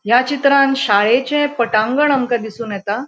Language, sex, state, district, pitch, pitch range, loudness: Konkani, female, Goa, North and South Goa, 245 Hz, 220-275 Hz, -15 LUFS